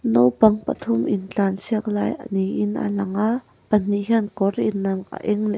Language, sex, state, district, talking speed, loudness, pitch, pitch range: Mizo, female, Mizoram, Aizawl, 195 wpm, -22 LUFS, 205 Hz, 195-215 Hz